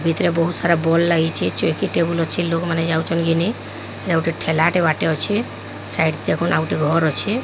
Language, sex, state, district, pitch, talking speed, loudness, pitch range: Odia, female, Odisha, Sambalpur, 165 Hz, 175 wpm, -19 LUFS, 165-170 Hz